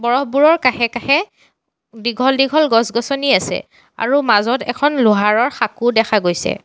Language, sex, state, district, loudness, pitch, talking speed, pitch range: Assamese, female, Assam, Sonitpur, -15 LUFS, 245 Hz, 135 wpm, 230-275 Hz